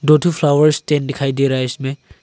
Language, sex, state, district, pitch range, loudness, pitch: Hindi, male, Arunachal Pradesh, Longding, 135-150 Hz, -16 LUFS, 145 Hz